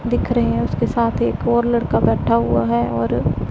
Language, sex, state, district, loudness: Hindi, female, Punjab, Pathankot, -18 LUFS